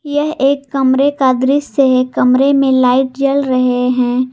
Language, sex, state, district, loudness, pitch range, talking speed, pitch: Hindi, female, Jharkhand, Garhwa, -13 LUFS, 255-275 Hz, 165 wpm, 265 Hz